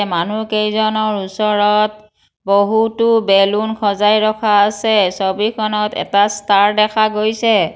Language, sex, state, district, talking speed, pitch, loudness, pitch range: Assamese, female, Assam, Kamrup Metropolitan, 95 wpm, 210 Hz, -15 LUFS, 205-215 Hz